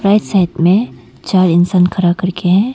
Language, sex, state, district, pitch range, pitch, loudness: Hindi, female, Arunachal Pradesh, Longding, 175-195 Hz, 180 Hz, -13 LUFS